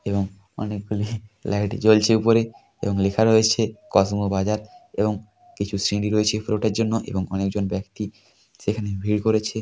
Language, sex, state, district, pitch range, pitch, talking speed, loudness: Bengali, male, West Bengal, Paschim Medinipur, 100-110 Hz, 105 Hz, 155 wpm, -23 LUFS